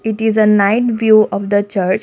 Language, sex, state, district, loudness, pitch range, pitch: English, female, Assam, Kamrup Metropolitan, -13 LUFS, 200-220 Hz, 215 Hz